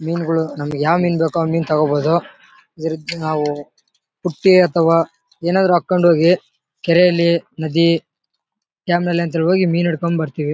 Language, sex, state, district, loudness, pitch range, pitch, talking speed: Kannada, male, Karnataka, Bellary, -17 LUFS, 160-175 Hz, 165 Hz, 150 wpm